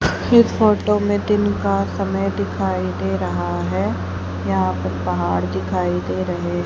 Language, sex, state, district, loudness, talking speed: Hindi, female, Haryana, Jhajjar, -20 LUFS, 145 wpm